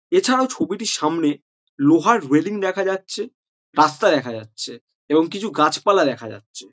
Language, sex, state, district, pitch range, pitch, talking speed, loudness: Bengali, male, West Bengal, Jhargram, 150-225 Hz, 190 Hz, 125 wpm, -19 LUFS